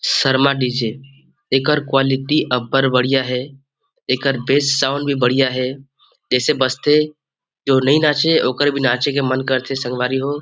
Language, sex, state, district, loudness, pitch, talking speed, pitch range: Chhattisgarhi, male, Chhattisgarh, Rajnandgaon, -17 LUFS, 135 Hz, 155 wpm, 130-145 Hz